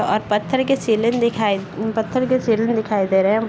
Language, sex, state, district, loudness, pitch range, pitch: Hindi, female, Uttar Pradesh, Gorakhpur, -19 LUFS, 210-235 Hz, 220 Hz